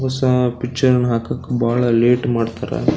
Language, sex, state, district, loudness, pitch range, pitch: Kannada, male, Karnataka, Belgaum, -18 LUFS, 115-125 Hz, 125 Hz